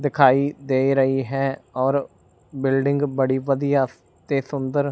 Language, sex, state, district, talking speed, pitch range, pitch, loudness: Punjabi, male, Punjab, Fazilka, 135 wpm, 130-140 Hz, 135 Hz, -21 LUFS